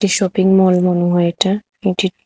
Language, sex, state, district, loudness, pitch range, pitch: Bengali, female, Tripura, West Tripura, -15 LUFS, 180-195 Hz, 190 Hz